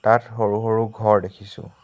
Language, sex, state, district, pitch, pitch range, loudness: Assamese, male, Assam, Hailakandi, 110 Hz, 100-115 Hz, -20 LUFS